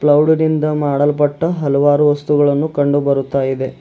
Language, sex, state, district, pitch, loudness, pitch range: Kannada, male, Karnataka, Bidar, 145 Hz, -15 LUFS, 140-150 Hz